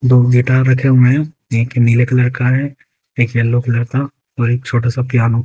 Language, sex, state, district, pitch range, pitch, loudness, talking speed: Hindi, female, Haryana, Jhajjar, 120-130 Hz, 125 Hz, -14 LUFS, 220 wpm